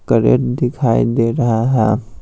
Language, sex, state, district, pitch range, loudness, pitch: Hindi, male, Bihar, Patna, 115-125 Hz, -15 LUFS, 120 Hz